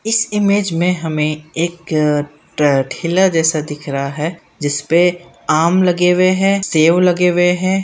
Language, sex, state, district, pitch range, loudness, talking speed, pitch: Hindi, female, Bihar, Sitamarhi, 150-180 Hz, -15 LUFS, 155 wpm, 170 Hz